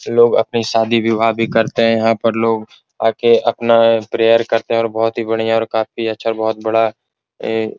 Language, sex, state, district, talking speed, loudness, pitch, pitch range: Hindi, male, Bihar, Supaul, 200 wpm, -15 LUFS, 115 Hz, 110-115 Hz